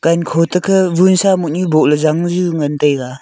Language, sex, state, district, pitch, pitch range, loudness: Wancho, male, Arunachal Pradesh, Longding, 170 Hz, 155-180 Hz, -14 LUFS